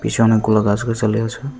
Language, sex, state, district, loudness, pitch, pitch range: Bengali, male, Tripura, West Tripura, -17 LUFS, 115 Hz, 110-115 Hz